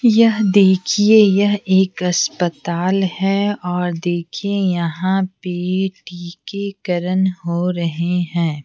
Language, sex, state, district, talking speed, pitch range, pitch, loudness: Hindi, female, Bihar, Patna, 95 wpm, 175-195 Hz, 185 Hz, -17 LUFS